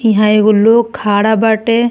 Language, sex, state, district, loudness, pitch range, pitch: Bhojpuri, female, Bihar, Muzaffarpur, -11 LUFS, 210-230 Hz, 220 Hz